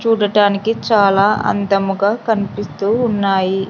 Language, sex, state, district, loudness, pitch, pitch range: Telugu, female, Andhra Pradesh, Sri Satya Sai, -15 LUFS, 205 Hz, 195-215 Hz